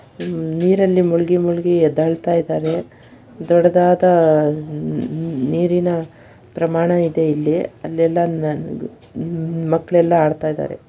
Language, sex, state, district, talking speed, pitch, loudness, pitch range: Kannada, female, Karnataka, Shimoga, 65 wpm, 165 Hz, -17 LUFS, 155-175 Hz